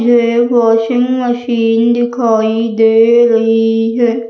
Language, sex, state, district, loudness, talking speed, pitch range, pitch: Hindi, male, Madhya Pradesh, Umaria, -11 LUFS, 100 wpm, 225-240 Hz, 230 Hz